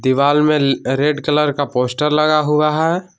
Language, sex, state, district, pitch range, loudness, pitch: Hindi, male, Jharkhand, Palamu, 140-150 Hz, -16 LUFS, 150 Hz